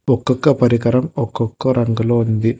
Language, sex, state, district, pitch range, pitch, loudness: Telugu, male, Telangana, Hyderabad, 115-130 Hz, 120 Hz, -17 LUFS